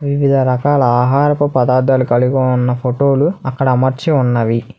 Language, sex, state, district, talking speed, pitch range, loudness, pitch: Telugu, male, Telangana, Hyderabad, 125 wpm, 125-140 Hz, -14 LUFS, 130 Hz